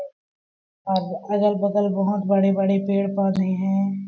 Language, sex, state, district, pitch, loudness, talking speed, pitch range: Hindi, female, Chhattisgarh, Balrampur, 195 Hz, -22 LUFS, 105 wpm, 195-200 Hz